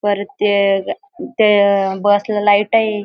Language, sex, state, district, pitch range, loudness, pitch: Marathi, female, Maharashtra, Aurangabad, 200-210 Hz, -15 LUFS, 205 Hz